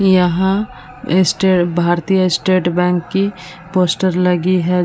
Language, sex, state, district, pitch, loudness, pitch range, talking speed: Hindi, female, Bihar, Vaishali, 185 Hz, -15 LUFS, 180-190 Hz, 110 wpm